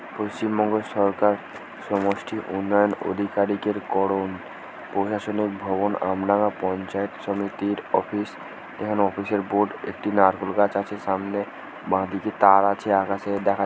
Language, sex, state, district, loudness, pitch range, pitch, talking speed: Bengali, male, West Bengal, North 24 Parganas, -24 LUFS, 100-105 Hz, 100 Hz, 110 wpm